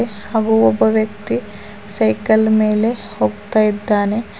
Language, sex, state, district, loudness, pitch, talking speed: Kannada, female, Karnataka, Bidar, -16 LUFS, 210 Hz, 95 wpm